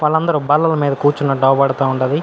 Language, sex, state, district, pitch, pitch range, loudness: Telugu, male, Andhra Pradesh, Anantapur, 145 Hz, 135-150 Hz, -15 LUFS